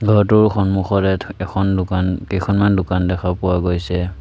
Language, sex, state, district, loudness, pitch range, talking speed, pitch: Assamese, male, Assam, Sonitpur, -17 LUFS, 90-100 Hz, 140 wpm, 95 Hz